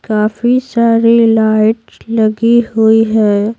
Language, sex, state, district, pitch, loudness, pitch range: Hindi, female, Bihar, Patna, 225 Hz, -11 LUFS, 215-230 Hz